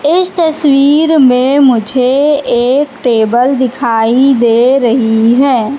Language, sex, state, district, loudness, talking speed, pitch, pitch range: Hindi, female, Madhya Pradesh, Katni, -9 LUFS, 105 wpm, 260 Hz, 240-285 Hz